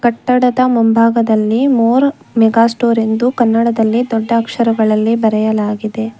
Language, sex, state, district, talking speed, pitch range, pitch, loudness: Kannada, female, Karnataka, Bangalore, 95 wpm, 220-240 Hz, 230 Hz, -13 LUFS